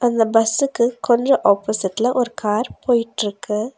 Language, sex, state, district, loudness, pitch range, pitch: Tamil, female, Tamil Nadu, Nilgiris, -19 LUFS, 210-245 Hz, 225 Hz